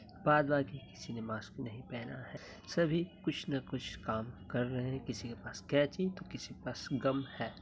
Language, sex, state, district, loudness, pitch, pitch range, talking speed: Hindi, male, Bihar, Muzaffarpur, -37 LUFS, 130 Hz, 115-145 Hz, 190 wpm